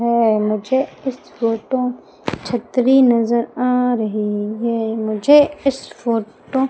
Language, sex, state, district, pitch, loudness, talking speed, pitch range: Hindi, female, Madhya Pradesh, Umaria, 235 Hz, -18 LUFS, 115 wpm, 220-260 Hz